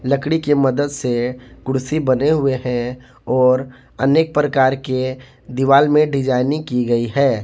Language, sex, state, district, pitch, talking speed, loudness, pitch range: Hindi, male, Jharkhand, Ranchi, 130 Hz, 145 wpm, -17 LUFS, 125-145 Hz